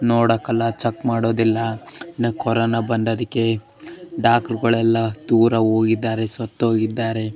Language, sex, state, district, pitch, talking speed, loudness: Kannada, male, Karnataka, Bellary, 115 Hz, 105 wpm, -20 LUFS